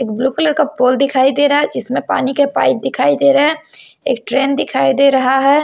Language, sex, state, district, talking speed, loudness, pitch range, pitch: Hindi, female, Odisha, Sambalpur, 245 wpm, -14 LUFS, 260-290 Hz, 275 Hz